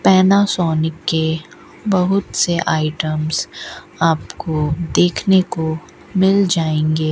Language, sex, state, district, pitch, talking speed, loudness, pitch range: Hindi, female, Rajasthan, Bikaner, 165 Hz, 85 wpm, -17 LUFS, 155-185 Hz